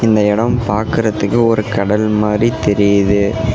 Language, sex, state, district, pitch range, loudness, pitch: Tamil, male, Tamil Nadu, Namakkal, 105-115 Hz, -14 LUFS, 105 Hz